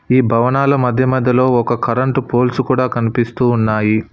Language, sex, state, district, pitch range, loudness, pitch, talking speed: Telugu, male, Telangana, Hyderabad, 120-130 Hz, -15 LUFS, 125 Hz, 145 wpm